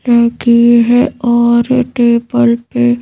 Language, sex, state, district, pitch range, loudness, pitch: Hindi, female, Madhya Pradesh, Bhopal, 235-245 Hz, -11 LUFS, 240 Hz